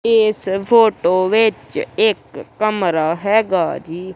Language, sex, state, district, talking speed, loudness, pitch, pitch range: Punjabi, male, Punjab, Kapurthala, 100 wpm, -16 LUFS, 205 Hz, 185-220 Hz